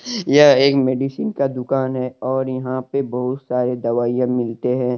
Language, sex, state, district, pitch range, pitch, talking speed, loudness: Hindi, male, Jharkhand, Deoghar, 125-135 Hz, 130 Hz, 170 wpm, -19 LUFS